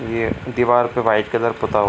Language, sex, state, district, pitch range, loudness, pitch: Hindi, male, Bihar, Supaul, 110-120 Hz, -19 LUFS, 115 Hz